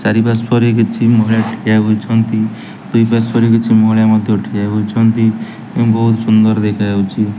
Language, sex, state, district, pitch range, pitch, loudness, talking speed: Odia, male, Odisha, Nuapada, 110-115 Hz, 110 Hz, -13 LUFS, 140 wpm